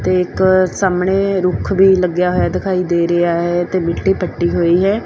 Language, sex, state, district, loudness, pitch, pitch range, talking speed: Punjabi, female, Punjab, Fazilka, -15 LUFS, 180 Hz, 175-190 Hz, 190 wpm